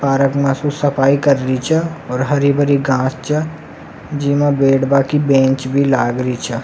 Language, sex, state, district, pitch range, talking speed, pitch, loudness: Rajasthani, male, Rajasthan, Nagaur, 130-145 Hz, 180 wpm, 140 Hz, -15 LUFS